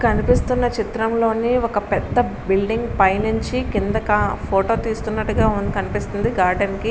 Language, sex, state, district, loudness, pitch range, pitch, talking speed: Telugu, female, Andhra Pradesh, Srikakulam, -20 LUFS, 200-230 Hz, 220 Hz, 120 wpm